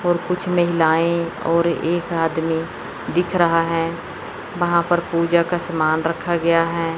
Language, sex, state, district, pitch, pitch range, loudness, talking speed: Hindi, male, Chandigarh, Chandigarh, 170 Hz, 165-175 Hz, -20 LUFS, 145 wpm